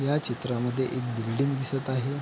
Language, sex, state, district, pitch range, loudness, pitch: Marathi, male, Maharashtra, Pune, 120-135 Hz, -29 LUFS, 130 Hz